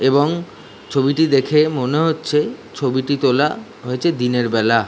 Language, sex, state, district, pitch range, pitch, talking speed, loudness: Bengali, male, West Bengal, Dakshin Dinajpur, 125-150 Hz, 140 Hz, 125 wpm, -18 LUFS